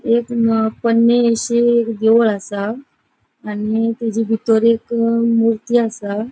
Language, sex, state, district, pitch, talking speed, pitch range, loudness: Konkani, female, Goa, North and South Goa, 230 Hz, 125 wpm, 220-235 Hz, -16 LUFS